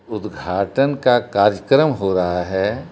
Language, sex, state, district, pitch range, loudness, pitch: Hindi, male, Jharkhand, Palamu, 95-130 Hz, -18 LUFS, 100 Hz